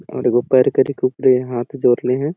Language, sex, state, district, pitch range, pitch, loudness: Awadhi, male, Chhattisgarh, Balrampur, 125-135 Hz, 130 Hz, -17 LUFS